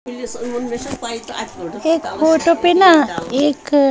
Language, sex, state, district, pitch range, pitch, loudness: Hindi, female, Bihar, West Champaran, 240-320 Hz, 275 Hz, -16 LUFS